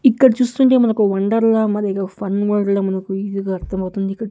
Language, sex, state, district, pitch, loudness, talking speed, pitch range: Telugu, male, Andhra Pradesh, Sri Satya Sai, 200 Hz, -17 LUFS, 225 wpm, 195-225 Hz